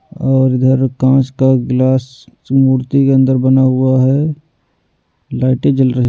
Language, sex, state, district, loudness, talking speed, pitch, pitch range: Hindi, male, Delhi, New Delhi, -13 LUFS, 140 wpm, 130 Hz, 130-135 Hz